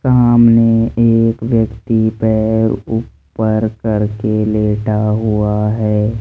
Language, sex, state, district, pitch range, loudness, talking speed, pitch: Hindi, male, Rajasthan, Jaipur, 105-115 Hz, -14 LUFS, 85 wpm, 110 Hz